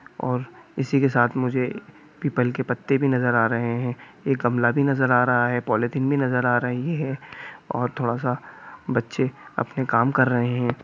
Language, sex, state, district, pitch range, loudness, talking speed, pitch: Hindi, male, Bihar, Gopalganj, 120-135 Hz, -23 LUFS, 195 wpm, 125 Hz